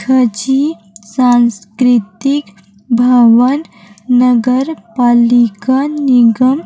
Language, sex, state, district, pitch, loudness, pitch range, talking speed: Hindi, female, Chhattisgarh, Raipur, 245 Hz, -11 LUFS, 225-260 Hz, 55 wpm